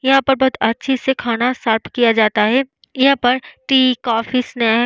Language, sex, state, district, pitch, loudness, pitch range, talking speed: Hindi, female, Bihar, Vaishali, 250 Hz, -16 LUFS, 230-265 Hz, 195 wpm